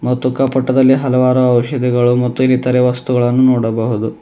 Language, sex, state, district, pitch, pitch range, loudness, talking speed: Kannada, male, Karnataka, Bidar, 125 Hz, 120-130 Hz, -13 LUFS, 115 wpm